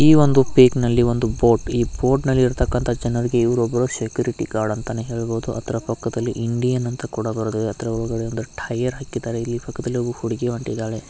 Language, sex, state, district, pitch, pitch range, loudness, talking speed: Kannada, male, Karnataka, Belgaum, 120 Hz, 115-125 Hz, -21 LUFS, 160 wpm